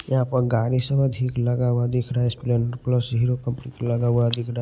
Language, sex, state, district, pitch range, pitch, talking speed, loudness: Hindi, male, Punjab, Pathankot, 120-125 Hz, 120 Hz, 245 wpm, -23 LUFS